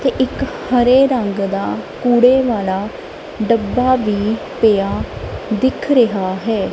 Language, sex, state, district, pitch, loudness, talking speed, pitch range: Punjabi, female, Punjab, Kapurthala, 230 Hz, -16 LUFS, 115 wpm, 205-255 Hz